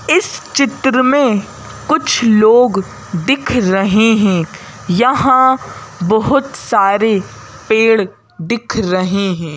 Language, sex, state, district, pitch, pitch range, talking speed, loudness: Hindi, female, Madhya Pradesh, Bhopal, 220 Hz, 195-260 Hz, 95 wpm, -13 LUFS